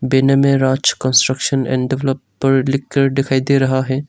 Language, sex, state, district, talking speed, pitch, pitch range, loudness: Hindi, male, Arunachal Pradesh, Longding, 175 wpm, 135 Hz, 130-135 Hz, -15 LUFS